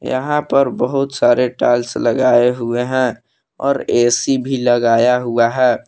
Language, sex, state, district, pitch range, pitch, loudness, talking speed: Hindi, male, Jharkhand, Palamu, 120-130 Hz, 125 Hz, -15 LUFS, 145 wpm